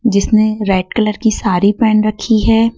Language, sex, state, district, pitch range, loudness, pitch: Hindi, female, Madhya Pradesh, Dhar, 210-225 Hz, -13 LUFS, 215 Hz